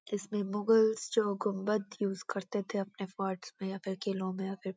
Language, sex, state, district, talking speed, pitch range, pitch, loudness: Hindi, female, Uttarakhand, Uttarkashi, 215 wpm, 195-210 Hz, 200 Hz, -33 LUFS